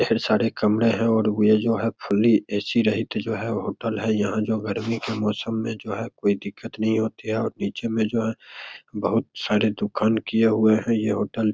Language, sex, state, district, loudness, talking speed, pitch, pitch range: Hindi, male, Bihar, Begusarai, -23 LUFS, 220 wpm, 110 Hz, 105-115 Hz